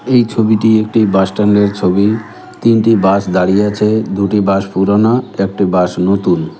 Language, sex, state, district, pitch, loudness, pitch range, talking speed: Bengali, male, West Bengal, Cooch Behar, 100 Hz, -12 LUFS, 95-110 Hz, 155 wpm